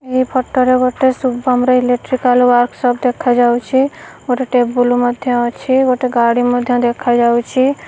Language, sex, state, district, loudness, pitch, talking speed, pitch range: Odia, female, Odisha, Nuapada, -14 LUFS, 250 Hz, 145 wpm, 245-255 Hz